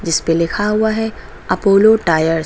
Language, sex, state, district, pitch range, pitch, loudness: Hindi, female, Uttar Pradesh, Lucknow, 165-220 Hz, 195 Hz, -15 LUFS